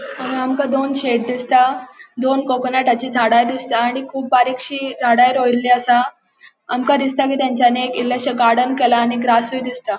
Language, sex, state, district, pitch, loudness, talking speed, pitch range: Konkani, female, Goa, North and South Goa, 255 Hz, -17 LUFS, 155 wpm, 245-265 Hz